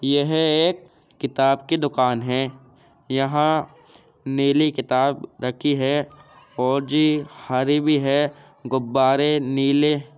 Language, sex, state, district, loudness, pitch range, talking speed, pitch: Hindi, male, Uttar Pradesh, Jyotiba Phule Nagar, -21 LUFS, 135-150 Hz, 110 wpm, 140 Hz